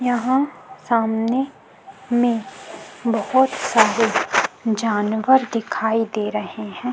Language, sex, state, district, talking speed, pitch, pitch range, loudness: Hindi, female, Chhattisgarh, Sukma, 85 wpm, 230 Hz, 220-255 Hz, -20 LUFS